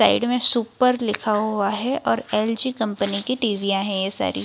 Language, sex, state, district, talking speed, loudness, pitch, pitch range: Hindi, female, Bihar, Kishanganj, 200 wpm, -22 LUFS, 215 Hz, 200-240 Hz